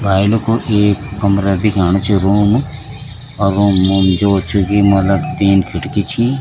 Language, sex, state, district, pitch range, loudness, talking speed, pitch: Garhwali, male, Uttarakhand, Tehri Garhwal, 95-110 Hz, -14 LUFS, 180 wpm, 100 Hz